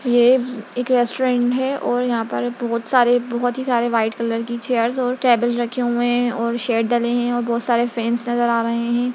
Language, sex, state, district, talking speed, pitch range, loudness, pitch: Hindi, female, Bihar, Jahanabad, 210 wpm, 235-245 Hz, -19 LUFS, 240 Hz